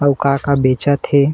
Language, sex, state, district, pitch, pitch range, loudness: Chhattisgarhi, male, Chhattisgarh, Bilaspur, 140 Hz, 140-145 Hz, -15 LUFS